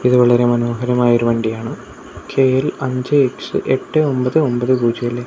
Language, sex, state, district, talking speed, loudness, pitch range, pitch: Malayalam, male, Kerala, Kasaragod, 135 wpm, -16 LUFS, 120-130 Hz, 125 Hz